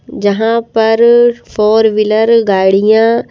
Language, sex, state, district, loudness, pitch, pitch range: Hindi, female, Madhya Pradesh, Bhopal, -10 LUFS, 220 Hz, 215-230 Hz